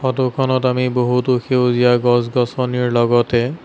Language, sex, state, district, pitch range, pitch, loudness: Assamese, male, Assam, Sonitpur, 120-130 Hz, 125 Hz, -16 LUFS